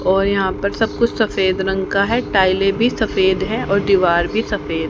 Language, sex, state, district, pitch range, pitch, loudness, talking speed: Hindi, female, Haryana, Rohtak, 190-205 Hz, 195 Hz, -17 LUFS, 210 wpm